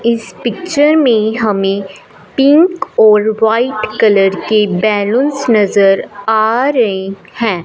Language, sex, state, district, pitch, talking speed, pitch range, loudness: Hindi, female, Punjab, Fazilka, 220 Hz, 110 wpm, 200-245 Hz, -12 LUFS